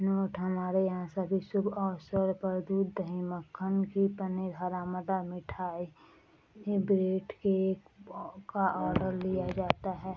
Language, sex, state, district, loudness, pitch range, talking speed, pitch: Hindi, female, Bihar, Sitamarhi, -33 LUFS, 185-195 Hz, 140 wpm, 190 Hz